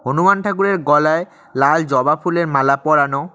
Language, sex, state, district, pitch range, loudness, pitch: Bengali, male, West Bengal, Cooch Behar, 140-180 Hz, -16 LUFS, 155 Hz